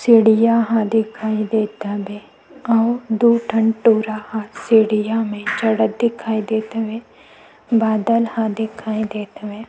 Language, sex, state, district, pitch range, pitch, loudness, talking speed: Chhattisgarhi, female, Chhattisgarh, Sukma, 215-230 Hz, 220 Hz, -18 LUFS, 130 wpm